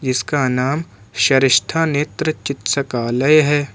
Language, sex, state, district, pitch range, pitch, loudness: Hindi, male, Jharkhand, Ranchi, 125-150 Hz, 135 Hz, -17 LUFS